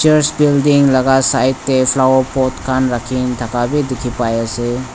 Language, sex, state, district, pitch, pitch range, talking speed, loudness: Nagamese, male, Nagaland, Dimapur, 130 Hz, 125-135 Hz, 135 wpm, -14 LUFS